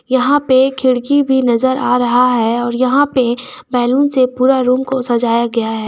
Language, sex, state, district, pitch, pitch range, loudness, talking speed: Hindi, female, Jharkhand, Garhwa, 255 Hz, 240-265 Hz, -14 LUFS, 195 wpm